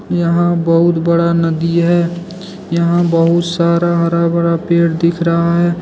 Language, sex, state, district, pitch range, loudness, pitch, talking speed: Hindi, male, Jharkhand, Deoghar, 170-175 Hz, -13 LUFS, 170 Hz, 145 wpm